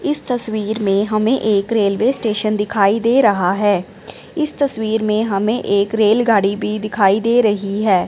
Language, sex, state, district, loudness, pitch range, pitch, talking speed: Hindi, female, Punjab, Fazilka, -16 LUFS, 200-230 Hz, 215 Hz, 165 wpm